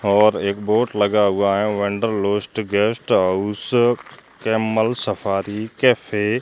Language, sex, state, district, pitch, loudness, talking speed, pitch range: Hindi, male, Rajasthan, Jaisalmer, 105 Hz, -19 LUFS, 130 wpm, 100-110 Hz